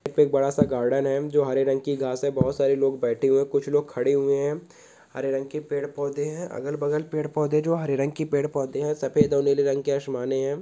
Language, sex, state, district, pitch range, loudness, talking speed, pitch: Hindi, male, Goa, North and South Goa, 135-145 Hz, -24 LUFS, 270 wpm, 140 Hz